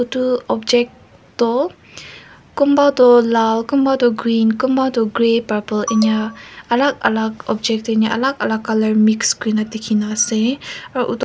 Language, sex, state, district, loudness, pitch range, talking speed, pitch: Nagamese, female, Nagaland, Kohima, -16 LUFS, 220-250 Hz, 145 wpm, 230 Hz